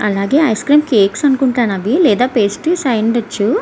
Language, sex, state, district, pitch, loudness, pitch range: Telugu, female, Andhra Pradesh, Visakhapatnam, 240 Hz, -14 LUFS, 210-285 Hz